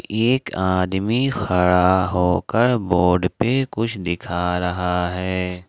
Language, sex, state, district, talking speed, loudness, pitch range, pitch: Hindi, male, Jharkhand, Ranchi, 105 wpm, -20 LUFS, 90-110 Hz, 90 Hz